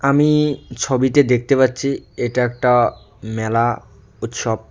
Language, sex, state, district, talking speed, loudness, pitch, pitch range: Bengali, male, West Bengal, Cooch Behar, 100 wpm, -18 LUFS, 125 Hz, 120-140 Hz